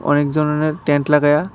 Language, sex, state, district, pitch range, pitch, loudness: Bengali, male, Tripura, West Tripura, 145-155 Hz, 150 Hz, -17 LUFS